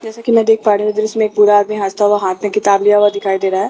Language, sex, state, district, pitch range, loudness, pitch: Hindi, female, Bihar, Katihar, 200-215 Hz, -13 LUFS, 210 Hz